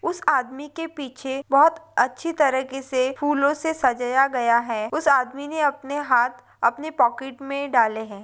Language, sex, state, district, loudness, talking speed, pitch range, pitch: Hindi, female, Maharashtra, Pune, -22 LUFS, 155 wpm, 250-295 Hz, 270 Hz